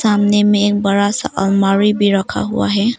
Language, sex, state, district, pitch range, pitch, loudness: Hindi, female, Arunachal Pradesh, Papum Pare, 195-205 Hz, 205 Hz, -14 LUFS